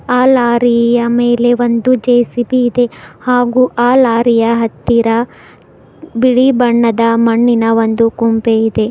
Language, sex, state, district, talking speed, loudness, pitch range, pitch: Kannada, female, Karnataka, Bidar, 100 wpm, -11 LUFS, 230-245 Hz, 240 Hz